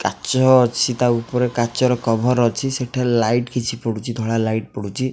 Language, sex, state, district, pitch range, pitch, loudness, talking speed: Odia, male, Odisha, Khordha, 115-125 Hz, 120 Hz, -19 LUFS, 175 wpm